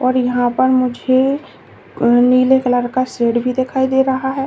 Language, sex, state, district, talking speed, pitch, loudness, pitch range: Hindi, female, Uttar Pradesh, Lalitpur, 175 wpm, 255 Hz, -15 LUFS, 245-265 Hz